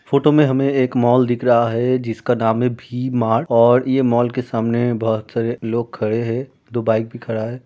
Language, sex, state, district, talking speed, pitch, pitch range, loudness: Hindi, male, Uttar Pradesh, Jyotiba Phule Nagar, 225 wpm, 120 Hz, 115-125 Hz, -18 LUFS